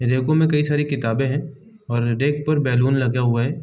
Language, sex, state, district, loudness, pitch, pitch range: Hindi, male, Bihar, East Champaran, -20 LUFS, 135 Hz, 125-150 Hz